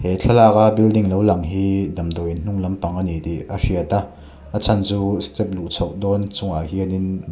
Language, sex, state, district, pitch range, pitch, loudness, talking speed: Mizo, male, Mizoram, Aizawl, 85-100 Hz, 95 Hz, -19 LUFS, 195 wpm